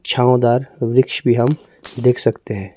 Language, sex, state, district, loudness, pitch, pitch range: Hindi, male, Himachal Pradesh, Shimla, -17 LUFS, 120 Hz, 120-130 Hz